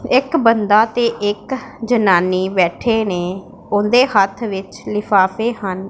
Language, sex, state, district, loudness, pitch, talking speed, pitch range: Punjabi, female, Punjab, Pathankot, -16 LUFS, 210 Hz, 120 wpm, 195-235 Hz